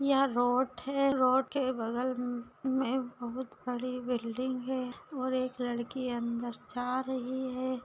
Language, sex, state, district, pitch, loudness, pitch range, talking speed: Hindi, female, Maharashtra, Pune, 255 Hz, -33 LUFS, 245-260 Hz, 135 wpm